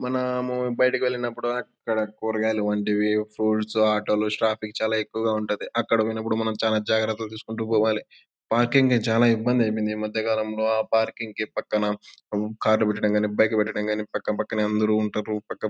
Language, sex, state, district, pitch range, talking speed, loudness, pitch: Telugu, male, Andhra Pradesh, Anantapur, 105-110 Hz, 170 wpm, -24 LUFS, 110 Hz